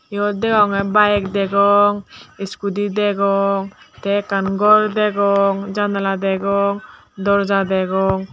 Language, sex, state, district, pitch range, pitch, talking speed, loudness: Chakma, female, Tripura, Dhalai, 195-205 Hz, 200 Hz, 100 wpm, -17 LUFS